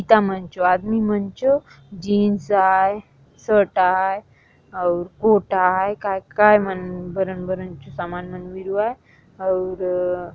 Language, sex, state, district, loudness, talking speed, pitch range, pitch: Halbi, female, Chhattisgarh, Bastar, -20 LUFS, 125 wpm, 180-205 Hz, 190 Hz